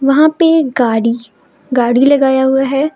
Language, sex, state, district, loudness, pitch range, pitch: Hindi, female, Jharkhand, Palamu, -12 LUFS, 245-290 Hz, 270 Hz